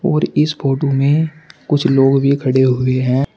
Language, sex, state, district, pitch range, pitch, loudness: Hindi, male, Uttar Pradesh, Shamli, 130-150 Hz, 140 Hz, -15 LUFS